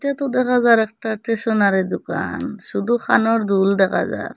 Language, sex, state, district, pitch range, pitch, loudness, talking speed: Bengali, female, Assam, Hailakandi, 200-240 Hz, 225 Hz, -19 LUFS, 165 wpm